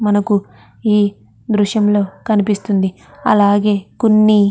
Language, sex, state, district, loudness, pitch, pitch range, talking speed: Telugu, female, Andhra Pradesh, Chittoor, -15 LUFS, 205 Hz, 205-215 Hz, 105 wpm